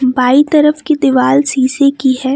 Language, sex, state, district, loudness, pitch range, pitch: Hindi, female, Jharkhand, Palamu, -11 LUFS, 260-290 Hz, 270 Hz